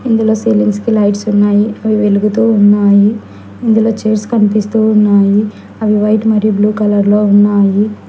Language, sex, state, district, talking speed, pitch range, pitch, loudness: Telugu, female, Telangana, Hyderabad, 140 wpm, 205-220 Hz, 210 Hz, -11 LUFS